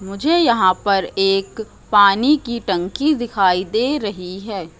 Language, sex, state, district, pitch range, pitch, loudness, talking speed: Hindi, female, Madhya Pradesh, Katni, 190-240 Hz, 200 Hz, -17 LUFS, 140 wpm